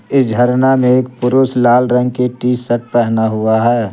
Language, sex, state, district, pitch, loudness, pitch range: Hindi, male, Jharkhand, Garhwa, 125 Hz, -13 LUFS, 120-125 Hz